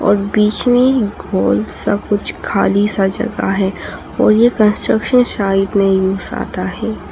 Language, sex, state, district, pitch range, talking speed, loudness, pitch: Hindi, female, Arunachal Pradesh, Papum Pare, 195-215 Hz, 150 wpm, -15 LUFS, 205 Hz